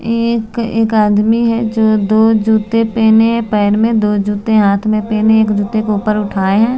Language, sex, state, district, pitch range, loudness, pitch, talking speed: Hindi, female, Bihar, Patna, 210-225 Hz, -13 LUFS, 220 Hz, 205 wpm